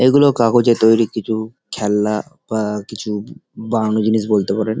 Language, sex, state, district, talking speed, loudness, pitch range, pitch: Bengali, male, West Bengal, Dakshin Dinajpur, 135 wpm, -17 LUFS, 105-115 Hz, 110 Hz